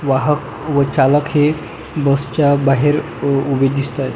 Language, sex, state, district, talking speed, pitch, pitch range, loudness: Marathi, male, Maharashtra, Pune, 115 wpm, 140 Hz, 135-150 Hz, -16 LUFS